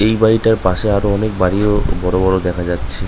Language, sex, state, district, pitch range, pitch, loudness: Bengali, male, West Bengal, North 24 Parganas, 90-105 Hz, 95 Hz, -15 LUFS